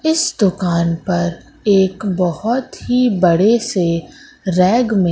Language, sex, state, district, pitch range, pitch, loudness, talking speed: Hindi, female, Madhya Pradesh, Katni, 175-240 Hz, 195 Hz, -16 LUFS, 130 wpm